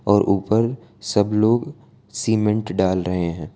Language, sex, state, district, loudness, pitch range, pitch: Hindi, male, Gujarat, Valsad, -20 LUFS, 95-110 Hz, 105 Hz